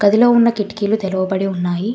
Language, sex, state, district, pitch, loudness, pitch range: Telugu, female, Telangana, Hyderabad, 205 Hz, -16 LUFS, 190-225 Hz